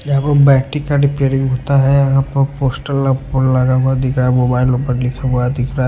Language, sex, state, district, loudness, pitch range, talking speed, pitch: Hindi, male, Punjab, Pathankot, -14 LUFS, 130-140 Hz, 215 wpm, 135 Hz